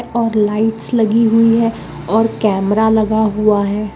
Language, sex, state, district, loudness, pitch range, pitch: Magahi, female, Bihar, Gaya, -14 LUFS, 210-225 Hz, 220 Hz